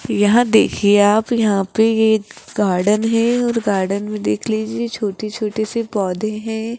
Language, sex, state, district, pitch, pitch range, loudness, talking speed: Hindi, female, Rajasthan, Jaipur, 215 Hz, 205-225 Hz, -17 LUFS, 160 wpm